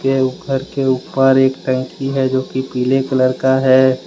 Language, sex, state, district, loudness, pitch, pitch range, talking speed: Hindi, male, Jharkhand, Deoghar, -16 LUFS, 130 Hz, 130-135 Hz, 190 wpm